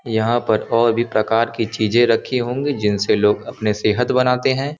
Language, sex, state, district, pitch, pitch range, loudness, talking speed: Hindi, male, Uttar Pradesh, Varanasi, 115 Hz, 110-125 Hz, -18 LUFS, 190 wpm